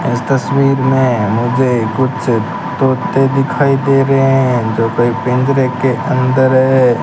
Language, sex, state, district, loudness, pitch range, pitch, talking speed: Hindi, male, Rajasthan, Bikaner, -13 LUFS, 125-135 Hz, 130 Hz, 135 wpm